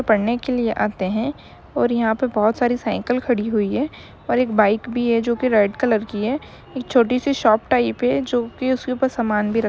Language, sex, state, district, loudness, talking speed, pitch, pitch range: Hindi, female, Bihar, Madhepura, -20 LUFS, 240 wpm, 235 Hz, 215-250 Hz